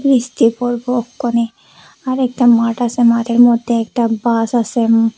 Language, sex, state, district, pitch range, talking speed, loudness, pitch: Bengali, female, Tripura, West Tripura, 230-245 Hz, 105 wpm, -15 LUFS, 235 Hz